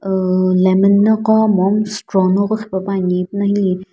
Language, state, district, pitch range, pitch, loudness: Sumi, Nagaland, Dimapur, 185-210 Hz, 195 Hz, -15 LUFS